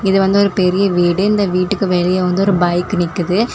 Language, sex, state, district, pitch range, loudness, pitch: Tamil, female, Tamil Nadu, Kanyakumari, 180-200 Hz, -15 LUFS, 185 Hz